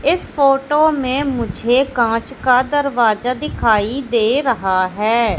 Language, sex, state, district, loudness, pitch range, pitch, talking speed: Hindi, female, Madhya Pradesh, Katni, -16 LUFS, 225-275 Hz, 250 Hz, 120 wpm